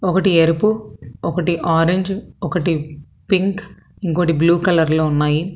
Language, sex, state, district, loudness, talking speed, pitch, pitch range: Telugu, female, Telangana, Hyderabad, -18 LUFS, 120 wpm, 170 Hz, 165-185 Hz